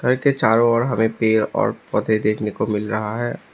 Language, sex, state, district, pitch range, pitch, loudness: Hindi, male, Assam, Sonitpur, 105-120 Hz, 110 Hz, -20 LUFS